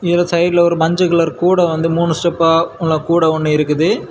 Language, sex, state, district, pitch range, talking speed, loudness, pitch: Tamil, male, Tamil Nadu, Kanyakumari, 160-175 Hz, 190 wpm, -14 LUFS, 170 Hz